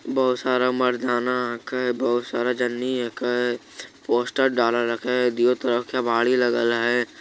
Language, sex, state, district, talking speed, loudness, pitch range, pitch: Magahi, male, Bihar, Jamui, 140 wpm, -23 LUFS, 120-125 Hz, 125 Hz